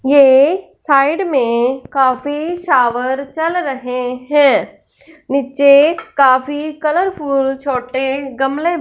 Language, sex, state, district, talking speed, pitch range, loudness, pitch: Hindi, female, Punjab, Fazilka, 90 wpm, 265-305 Hz, -15 LUFS, 275 Hz